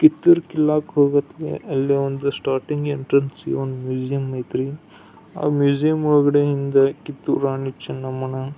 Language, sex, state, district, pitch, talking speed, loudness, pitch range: Kannada, male, Karnataka, Belgaum, 140 Hz, 125 wpm, -20 LUFS, 135-150 Hz